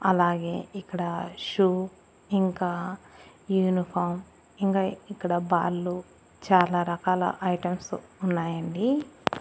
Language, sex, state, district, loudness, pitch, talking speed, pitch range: Telugu, female, Andhra Pradesh, Annamaya, -27 LUFS, 180 Hz, 75 wpm, 175-190 Hz